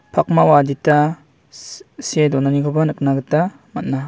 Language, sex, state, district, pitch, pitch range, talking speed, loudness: Garo, male, Meghalaya, West Garo Hills, 150 Hz, 140-155 Hz, 120 wpm, -17 LUFS